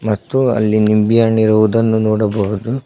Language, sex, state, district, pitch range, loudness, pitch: Kannada, male, Karnataka, Koppal, 105-115 Hz, -14 LUFS, 110 Hz